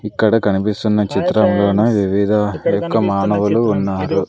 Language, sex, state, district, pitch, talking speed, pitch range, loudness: Telugu, male, Andhra Pradesh, Sri Satya Sai, 105 Hz, 100 wpm, 100-105 Hz, -16 LUFS